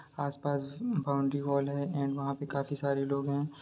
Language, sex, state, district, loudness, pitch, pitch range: Hindi, male, Bihar, Sitamarhi, -33 LUFS, 140 Hz, 140-145 Hz